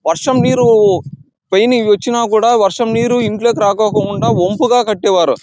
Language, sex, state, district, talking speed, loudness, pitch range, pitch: Telugu, male, Andhra Pradesh, Anantapur, 135 wpm, -13 LUFS, 200-235 Hz, 220 Hz